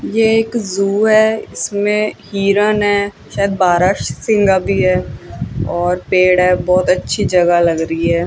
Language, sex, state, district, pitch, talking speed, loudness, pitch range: Hindi, female, Chandigarh, Chandigarh, 195 Hz, 145 wpm, -14 LUFS, 180-210 Hz